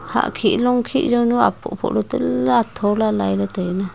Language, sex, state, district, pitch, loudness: Wancho, female, Arunachal Pradesh, Longding, 205 Hz, -19 LUFS